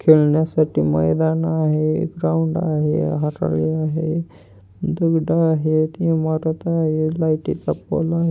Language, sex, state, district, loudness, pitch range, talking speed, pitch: Marathi, male, Maharashtra, Pune, -20 LUFS, 155-165 Hz, 110 wpm, 155 Hz